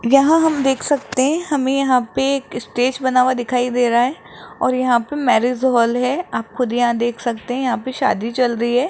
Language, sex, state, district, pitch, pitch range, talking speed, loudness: Hindi, male, Rajasthan, Jaipur, 255 Hz, 240-270 Hz, 230 wpm, -18 LUFS